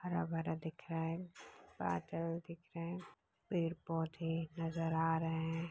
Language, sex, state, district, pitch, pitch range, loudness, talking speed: Hindi, female, Bihar, Begusarai, 165 Hz, 165-170 Hz, -40 LUFS, 145 wpm